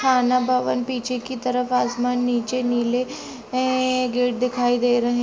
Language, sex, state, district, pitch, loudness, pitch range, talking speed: Hindi, female, Chhattisgarh, Raigarh, 250 Hz, -22 LUFS, 245-255 Hz, 150 wpm